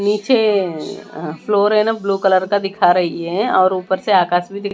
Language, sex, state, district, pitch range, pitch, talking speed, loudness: Hindi, female, Odisha, Malkangiri, 175-205 Hz, 195 Hz, 215 wpm, -16 LUFS